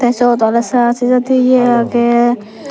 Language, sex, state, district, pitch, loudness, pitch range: Chakma, female, Tripura, Dhalai, 240 Hz, -12 LUFS, 235-250 Hz